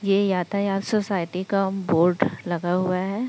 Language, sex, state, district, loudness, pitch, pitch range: Hindi, male, Chhattisgarh, Raipur, -23 LUFS, 195 Hz, 180-200 Hz